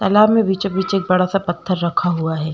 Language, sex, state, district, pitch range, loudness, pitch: Hindi, female, Uttar Pradesh, Jalaun, 175-195 Hz, -17 LUFS, 185 Hz